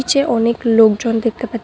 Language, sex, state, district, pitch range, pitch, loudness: Bengali, female, West Bengal, Cooch Behar, 230-245 Hz, 230 Hz, -15 LUFS